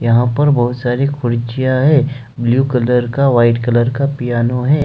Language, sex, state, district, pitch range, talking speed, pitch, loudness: Hindi, male, Jharkhand, Deoghar, 120-140 Hz, 160 wpm, 125 Hz, -14 LUFS